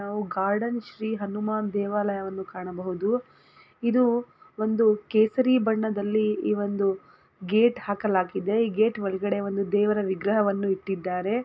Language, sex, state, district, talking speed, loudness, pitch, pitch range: Kannada, female, Karnataka, Gulbarga, 105 wpm, -26 LUFS, 210 Hz, 200-220 Hz